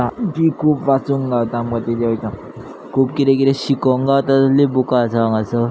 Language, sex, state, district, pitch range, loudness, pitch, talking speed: Konkani, male, Goa, North and South Goa, 115-140 Hz, -17 LUFS, 130 Hz, 155 wpm